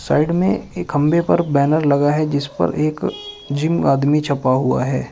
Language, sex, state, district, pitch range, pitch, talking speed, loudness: Hindi, male, Uttar Pradesh, Shamli, 140-160 Hz, 150 Hz, 190 wpm, -18 LUFS